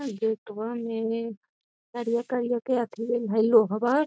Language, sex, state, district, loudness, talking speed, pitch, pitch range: Magahi, female, Bihar, Gaya, -27 LUFS, 150 wpm, 230 Hz, 225-240 Hz